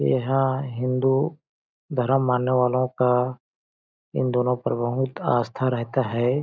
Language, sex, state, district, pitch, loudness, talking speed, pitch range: Hindi, male, Chhattisgarh, Balrampur, 125 Hz, -23 LUFS, 120 wpm, 125-130 Hz